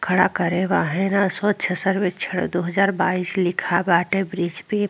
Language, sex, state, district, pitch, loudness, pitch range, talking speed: Bhojpuri, female, Uttar Pradesh, Ghazipur, 185 Hz, -21 LUFS, 175-195 Hz, 170 wpm